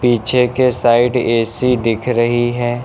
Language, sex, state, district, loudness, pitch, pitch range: Hindi, male, Uttar Pradesh, Lucknow, -15 LUFS, 120 Hz, 115-125 Hz